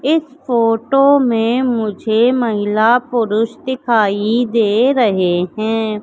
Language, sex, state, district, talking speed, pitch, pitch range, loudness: Hindi, female, Madhya Pradesh, Katni, 90 wpm, 230 Hz, 215-250 Hz, -15 LUFS